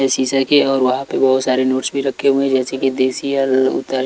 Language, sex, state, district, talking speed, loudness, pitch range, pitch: Hindi, male, Chhattisgarh, Raipur, 280 wpm, -16 LUFS, 130-135 Hz, 130 Hz